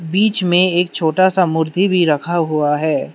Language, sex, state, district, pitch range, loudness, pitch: Hindi, male, Manipur, Imphal West, 160-185 Hz, -15 LUFS, 175 Hz